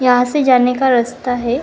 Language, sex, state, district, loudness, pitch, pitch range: Hindi, female, Karnataka, Bangalore, -14 LUFS, 250 Hz, 245-260 Hz